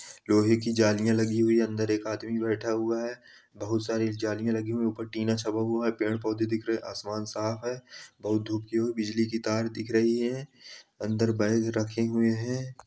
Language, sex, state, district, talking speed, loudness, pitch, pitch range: Hindi, male, Uttar Pradesh, Ghazipur, 210 wpm, -28 LUFS, 115 Hz, 110-115 Hz